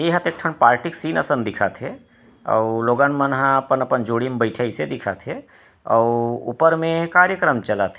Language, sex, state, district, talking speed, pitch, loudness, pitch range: Chhattisgarhi, male, Chhattisgarh, Rajnandgaon, 210 wpm, 130 Hz, -19 LUFS, 120-165 Hz